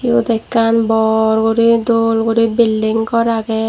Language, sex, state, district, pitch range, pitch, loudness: Chakma, female, Tripura, Dhalai, 220-230 Hz, 225 Hz, -14 LUFS